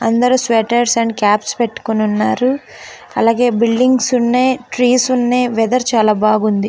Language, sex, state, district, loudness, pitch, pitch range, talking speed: Telugu, female, Telangana, Karimnagar, -14 LUFS, 235 Hz, 225-250 Hz, 135 wpm